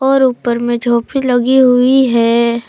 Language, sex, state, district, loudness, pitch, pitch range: Hindi, female, Jharkhand, Palamu, -12 LUFS, 245 Hz, 235-260 Hz